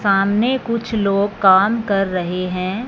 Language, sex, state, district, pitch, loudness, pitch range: Hindi, male, Punjab, Fazilka, 200 Hz, -17 LUFS, 190-220 Hz